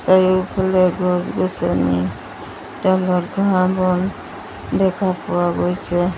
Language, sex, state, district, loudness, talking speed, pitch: Assamese, female, Assam, Sonitpur, -18 LUFS, 70 wpm, 180 Hz